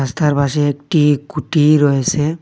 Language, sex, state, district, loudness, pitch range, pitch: Bengali, male, Assam, Hailakandi, -15 LUFS, 140-150 Hz, 145 Hz